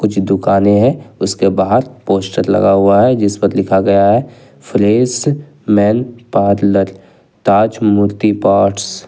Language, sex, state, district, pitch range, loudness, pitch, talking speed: Hindi, male, Jharkhand, Ranchi, 95-115 Hz, -13 LUFS, 100 Hz, 140 wpm